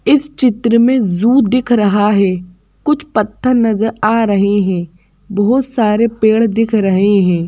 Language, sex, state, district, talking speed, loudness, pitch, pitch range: Hindi, female, Madhya Pradesh, Bhopal, 150 wpm, -13 LUFS, 220 Hz, 200-240 Hz